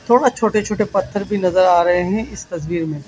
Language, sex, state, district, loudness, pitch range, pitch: Hindi, male, Chhattisgarh, Raipur, -17 LUFS, 175-215 Hz, 195 Hz